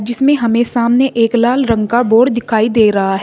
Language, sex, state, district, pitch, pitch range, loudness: Hindi, female, Uttar Pradesh, Shamli, 235 Hz, 220-245 Hz, -13 LUFS